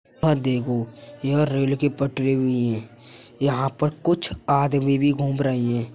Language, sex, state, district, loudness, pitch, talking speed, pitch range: Hindi, male, Uttar Pradesh, Hamirpur, -22 LUFS, 135 Hz, 160 wpm, 125-145 Hz